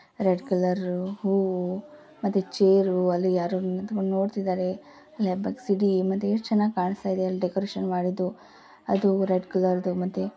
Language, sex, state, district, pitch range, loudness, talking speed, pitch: Kannada, female, Karnataka, Gulbarga, 185-200 Hz, -26 LUFS, 120 wpm, 190 Hz